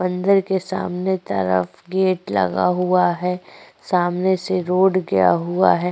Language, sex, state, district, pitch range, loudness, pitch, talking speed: Hindi, female, Uttar Pradesh, Jyotiba Phule Nagar, 175-190 Hz, -19 LUFS, 180 Hz, 150 wpm